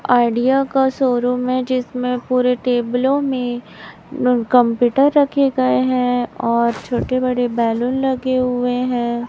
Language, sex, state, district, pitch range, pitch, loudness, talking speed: Hindi, male, Chhattisgarh, Raipur, 240-255 Hz, 250 Hz, -17 LUFS, 125 wpm